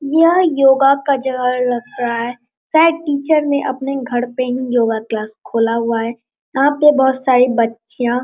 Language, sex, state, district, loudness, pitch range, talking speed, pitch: Hindi, male, Bihar, Araria, -16 LUFS, 235-280 Hz, 175 wpm, 255 Hz